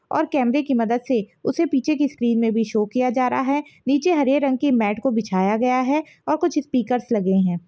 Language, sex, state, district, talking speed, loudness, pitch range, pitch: Hindi, female, Chhattisgarh, Rajnandgaon, 240 wpm, -21 LUFS, 230-290 Hz, 255 Hz